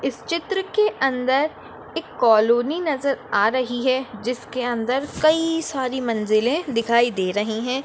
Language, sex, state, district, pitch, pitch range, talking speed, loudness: Hindi, female, Maharashtra, Nagpur, 255 Hz, 235-295 Hz, 145 wpm, -21 LUFS